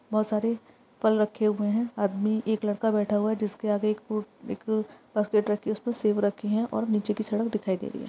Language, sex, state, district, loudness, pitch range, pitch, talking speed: Hindi, female, Uttar Pradesh, Varanasi, -27 LUFS, 210-220 Hz, 215 Hz, 230 wpm